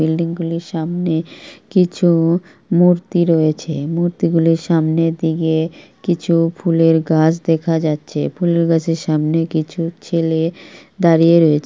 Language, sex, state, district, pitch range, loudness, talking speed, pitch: Bengali, male, West Bengal, Purulia, 160-170 Hz, -16 LUFS, 110 wpm, 165 Hz